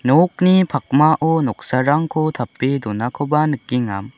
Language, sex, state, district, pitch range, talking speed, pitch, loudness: Garo, male, Meghalaya, South Garo Hills, 125-155 Hz, 85 wpm, 145 Hz, -18 LUFS